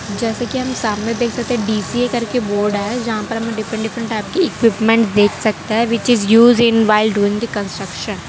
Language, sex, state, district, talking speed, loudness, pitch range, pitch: Hindi, female, Gujarat, Valsad, 225 wpm, -16 LUFS, 215-235 Hz, 225 Hz